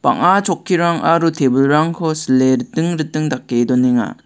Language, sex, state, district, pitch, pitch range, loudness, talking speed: Garo, male, Meghalaya, West Garo Hills, 155 Hz, 130-170 Hz, -15 LUFS, 115 wpm